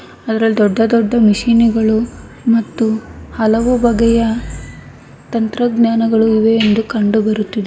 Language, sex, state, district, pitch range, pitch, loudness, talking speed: Kannada, female, Karnataka, Bangalore, 220-230 Hz, 225 Hz, -14 LUFS, 95 wpm